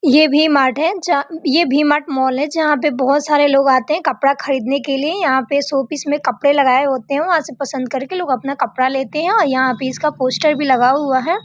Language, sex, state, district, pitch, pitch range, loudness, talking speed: Hindi, female, Bihar, Gopalganj, 280 Hz, 265-300 Hz, -16 LUFS, 255 wpm